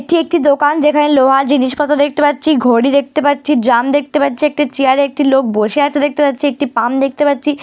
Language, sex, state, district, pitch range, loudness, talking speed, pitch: Bengali, female, West Bengal, Dakshin Dinajpur, 270-295 Hz, -13 LUFS, 210 wpm, 285 Hz